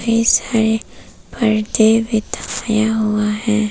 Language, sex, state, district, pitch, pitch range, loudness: Hindi, female, Arunachal Pradesh, Papum Pare, 220 Hz, 215-225 Hz, -16 LUFS